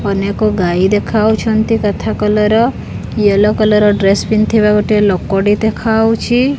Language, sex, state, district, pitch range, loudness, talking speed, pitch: Odia, female, Odisha, Khordha, 205-220 Hz, -13 LUFS, 120 wpm, 210 Hz